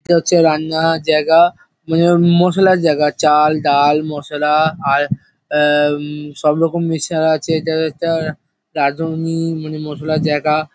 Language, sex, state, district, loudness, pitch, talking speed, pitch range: Bengali, male, West Bengal, Kolkata, -15 LUFS, 155 Hz, 125 wpm, 150-165 Hz